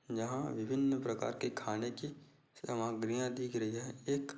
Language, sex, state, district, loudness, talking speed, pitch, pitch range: Hindi, male, Chhattisgarh, Korba, -38 LUFS, 150 wpm, 125 Hz, 115-140 Hz